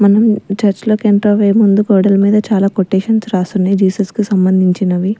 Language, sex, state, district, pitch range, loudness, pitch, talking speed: Telugu, female, Andhra Pradesh, Sri Satya Sai, 195-210 Hz, -12 LUFS, 200 Hz, 150 wpm